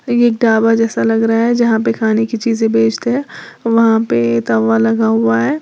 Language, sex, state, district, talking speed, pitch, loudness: Hindi, female, Uttar Pradesh, Lalitpur, 205 wpm, 225 Hz, -14 LUFS